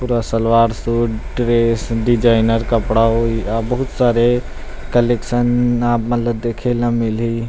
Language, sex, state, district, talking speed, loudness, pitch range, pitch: Chhattisgarhi, male, Chhattisgarh, Rajnandgaon, 130 wpm, -17 LUFS, 115-120 Hz, 115 Hz